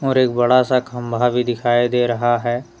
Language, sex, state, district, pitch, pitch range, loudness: Hindi, male, Jharkhand, Deoghar, 120 Hz, 120-125 Hz, -18 LUFS